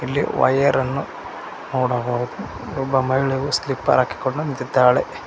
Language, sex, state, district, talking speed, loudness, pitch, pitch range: Kannada, male, Karnataka, Koppal, 90 wpm, -20 LUFS, 130 Hz, 125-135 Hz